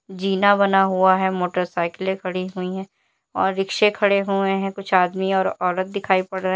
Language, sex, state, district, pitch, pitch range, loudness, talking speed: Hindi, female, Uttar Pradesh, Lalitpur, 190 Hz, 185-195 Hz, -20 LUFS, 185 wpm